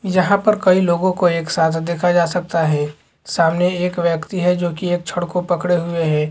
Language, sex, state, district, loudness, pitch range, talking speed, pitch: Hindi, male, Chhattisgarh, Raigarh, -18 LUFS, 165-180 Hz, 210 wpm, 175 Hz